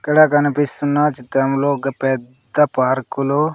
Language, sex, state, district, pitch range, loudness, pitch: Telugu, male, Andhra Pradesh, Sri Satya Sai, 135-145 Hz, -18 LUFS, 140 Hz